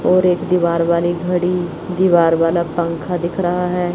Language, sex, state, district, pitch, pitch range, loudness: Hindi, male, Chandigarh, Chandigarh, 175 Hz, 170-180 Hz, -17 LUFS